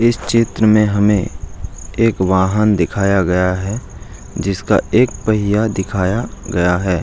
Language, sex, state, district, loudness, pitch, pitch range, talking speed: Hindi, male, Bihar, Jahanabad, -16 LUFS, 100 Hz, 90-110 Hz, 130 wpm